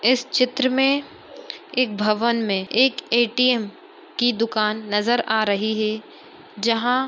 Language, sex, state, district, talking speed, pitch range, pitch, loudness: Hindi, female, Uttar Pradesh, Muzaffarnagar, 135 wpm, 215-265 Hz, 240 Hz, -21 LUFS